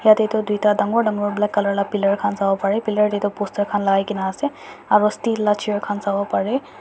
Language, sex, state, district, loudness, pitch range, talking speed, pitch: Nagamese, female, Nagaland, Dimapur, -20 LUFS, 205-215 Hz, 240 wpm, 205 Hz